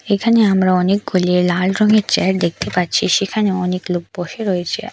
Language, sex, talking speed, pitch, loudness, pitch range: Bengali, female, 160 wpm, 190 Hz, -16 LUFS, 180-210 Hz